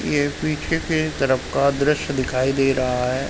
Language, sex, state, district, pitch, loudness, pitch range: Hindi, male, Uttar Pradesh, Ghazipur, 140 Hz, -21 LUFS, 130-150 Hz